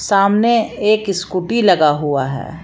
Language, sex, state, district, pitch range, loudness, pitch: Hindi, female, Jharkhand, Palamu, 155-215 Hz, -15 LUFS, 195 Hz